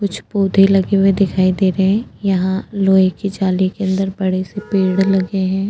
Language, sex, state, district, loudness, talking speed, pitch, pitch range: Hindi, female, Goa, North and South Goa, -16 LUFS, 210 wpm, 195 Hz, 190-195 Hz